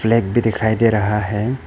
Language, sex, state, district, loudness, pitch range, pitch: Hindi, male, Arunachal Pradesh, Papum Pare, -17 LUFS, 105-115 Hz, 110 Hz